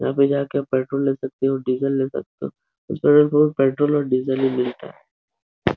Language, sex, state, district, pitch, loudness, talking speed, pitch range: Hindi, male, Uttar Pradesh, Etah, 135 Hz, -20 LUFS, 230 wpm, 130-140 Hz